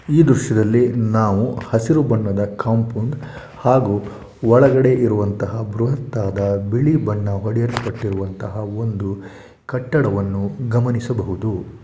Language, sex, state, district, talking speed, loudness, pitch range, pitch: Kannada, male, Karnataka, Shimoga, 85 wpm, -19 LUFS, 100-125 Hz, 115 Hz